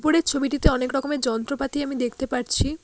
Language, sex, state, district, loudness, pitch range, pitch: Bengali, female, West Bengal, Alipurduar, -24 LUFS, 250-290 Hz, 275 Hz